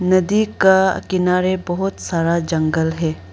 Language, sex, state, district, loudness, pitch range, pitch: Hindi, female, Arunachal Pradesh, Lower Dibang Valley, -18 LUFS, 165-190 Hz, 180 Hz